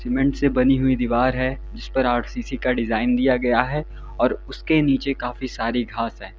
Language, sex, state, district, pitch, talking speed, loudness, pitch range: Hindi, male, Uttar Pradesh, Lalitpur, 130 Hz, 195 wpm, -22 LUFS, 120-135 Hz